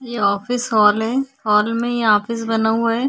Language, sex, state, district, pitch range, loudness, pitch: Hindi, female, Maharashtra, Chandrapur, 210-240 Hz, -18 LUFS, 230 Hz